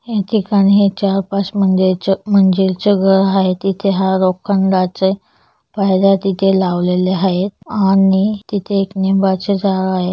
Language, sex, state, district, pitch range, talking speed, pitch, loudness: Marathi, female, Maharashtra, Chandrapur, 190-200 Hz, 130 wpm, 195 Hz, -14 LUFS